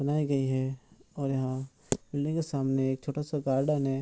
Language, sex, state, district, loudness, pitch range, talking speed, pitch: Hindi, male, Bihar, Araria, -31 LUFS, 135-145 Hz, 180 wpm, 140 Hz